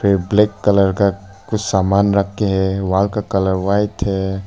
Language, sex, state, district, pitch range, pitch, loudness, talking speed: Hindi, male, Arunachal Pradesh, Papum Pare, 95-100 Hz, 100 Hz, -17 LUFS, 175 wpm